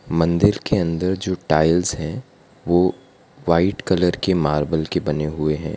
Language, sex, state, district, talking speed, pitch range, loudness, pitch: Hindi, female, Gujarat, Valsad, 155 wpm, 80-90 Hz, -20 LUFS, 85 Hz